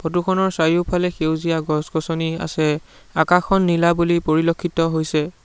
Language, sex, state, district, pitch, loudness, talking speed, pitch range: Assamese, male, Assam, Sonitpur, 165 Hz, -19 LUFS, 130 wpm, 160-175 Hz